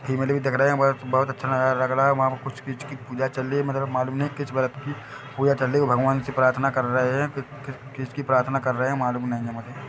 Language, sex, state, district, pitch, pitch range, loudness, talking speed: Hindi, male, Chhattisgarh, Bilaspur, 135 Hz, 130-140 Hz, -24 LUFS, 295 wpm